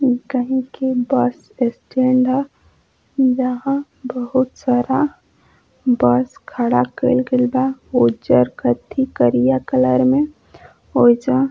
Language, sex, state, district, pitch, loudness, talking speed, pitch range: Bhojpuri, female, Uttar Pradesh, Gorakhpur, 255 Hz, -18 LUFS, 105 wpm, 240-260 Hz